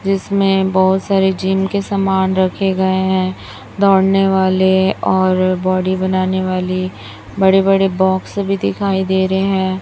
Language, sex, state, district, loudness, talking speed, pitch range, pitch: Hindi, male, Chhattisgarh, Raipur, -15 LUFS, 140 wpm, 185-195 Hz, 190 Hz